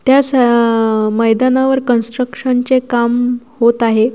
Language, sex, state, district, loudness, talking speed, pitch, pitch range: Marathi, female, Maharashtra, Washim, -13 LUFS, 115 wpm, 240 Hz, 230-255 Hz